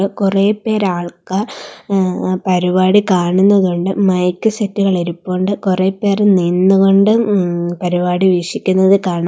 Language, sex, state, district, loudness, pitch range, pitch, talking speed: Malayalam, female, Kerala, Kollam, -14 LUFS, 180-200 Hz, 190 Hz, 110 wpm